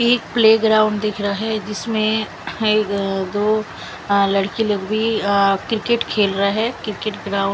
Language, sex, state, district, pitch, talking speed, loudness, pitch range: Hindi, female, Chandigarh, Chandigarh, 215 Hz, 160 wpm, -19 LUFS, 200-220 Hz